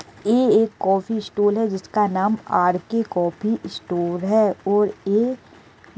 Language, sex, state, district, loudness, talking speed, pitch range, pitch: Hindi, female, Uttar Pradesh, Deoria, -21 LUFS, 140 wpm, 190-220 Hz, 205 Hz